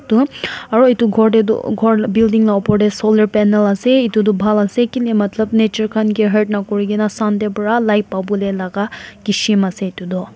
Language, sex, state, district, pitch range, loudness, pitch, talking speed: Nagamese, female, Nagaland, Kohima, 205-220 Hz, -15 LUFS, 215 Hz, 215 wpm